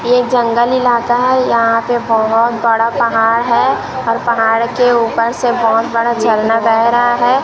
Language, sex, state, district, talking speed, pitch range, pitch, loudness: Hindi, female, Chhattisgarh, Raipur, 170 wpm, 230-240 Hz, 235 Hz, -13 LUFS